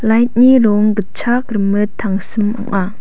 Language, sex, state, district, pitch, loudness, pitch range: Garo, female, Meghalaya, South Garo Hills, 215 Hz, -14 LUFS, 205-235 Hz